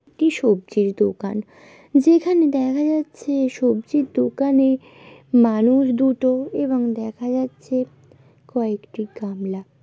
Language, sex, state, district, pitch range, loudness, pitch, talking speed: Bengali, female, West Bengal, Jalpaiguri, 210-270 Hz, -20 LUFS, 245 Hz, 90 wpm